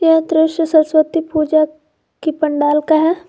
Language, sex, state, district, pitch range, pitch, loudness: Hindi, female, Jharkhand, Garhwa, 310-325 Hz, 315 Hz, -15 LUFS